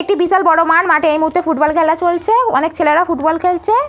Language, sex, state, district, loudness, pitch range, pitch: Bengali, female, West Bengal, Malda, -13 LUFS, 320-355 Hz, 335 Hz